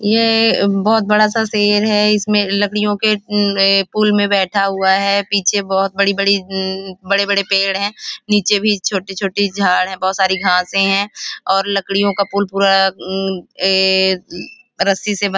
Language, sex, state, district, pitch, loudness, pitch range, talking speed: Hindi, female, Maharashtra, Nagpur, 200 Hz, -15 LUFS, 195-205 Hz, 180 wpm